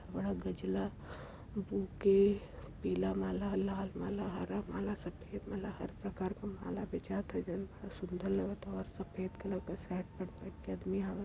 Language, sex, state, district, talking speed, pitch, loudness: Awadhi, female, Uttar Pradesh, Varanasi, 165 wpm, 185 Hz, -39 LUFS